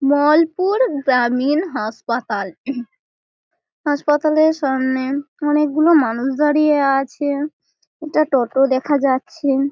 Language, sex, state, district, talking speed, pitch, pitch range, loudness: Bengali, female, West Bengal, Malda, 85 wpm, 285 Hz, 260-305 Hz, -18 LUFS